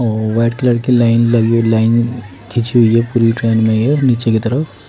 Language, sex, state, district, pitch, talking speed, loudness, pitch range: Hindi, male, Himachal Pradesh, Shimla, 115 Hz, 210 wpm, -13 LUFS, 115-120 Hz